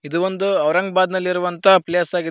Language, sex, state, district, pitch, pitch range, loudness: Kannada, male, Karnataka, Koppal, 180 Hz, 175-190 Hz, -18 LUFS